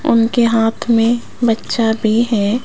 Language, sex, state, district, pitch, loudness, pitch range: Hindi, female, Rajasthan, Jaipur, 230 Hz, -15 LUFS, 225-235 Hz